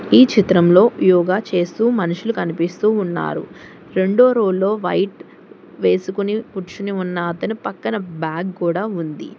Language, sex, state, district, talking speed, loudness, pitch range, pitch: Telugu, female, Telangana, Hyderabad, 120 wpm, -18 LUFS, 175-210 Hz, 190 Hz